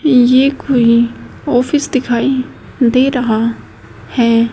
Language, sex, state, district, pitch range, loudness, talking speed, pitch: Hindi, female, Haryana, Jhajjar, 235-265 Hz, -13 LUFS, 95 wpm, 250 Hz